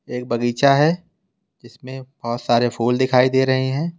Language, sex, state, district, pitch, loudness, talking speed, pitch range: Hindi, male, Uttar Pradesh, Lalitpur, 130 Hz, -19 LUFS, 165 wpm, 120-140 Hz